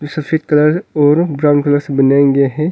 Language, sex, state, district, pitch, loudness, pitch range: Hindi, male, Arunachal Pradesh, Longding, 145 Hz, -13 LUFS, 140-155 Hz